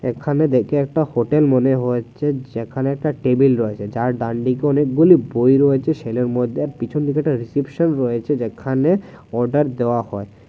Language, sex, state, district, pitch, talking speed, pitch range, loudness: Bengali, male, Tripura, West Tripura, 130 Hz, 135 wpm, 120-145 Hz, -18 LUFS